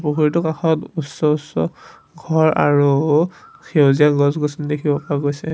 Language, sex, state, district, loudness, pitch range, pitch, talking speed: Assamese, male, Assam, Sonitpur, -18 LUFS, 145-160 Hz, 150 Hz, 130 wpm